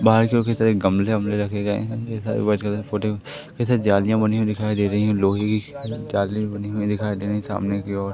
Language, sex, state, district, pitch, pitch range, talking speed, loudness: Hindi, male, Madhya Pradesh, Katni, 105 Hz, 105-110 Hz, 200 wpm, -22 LUFS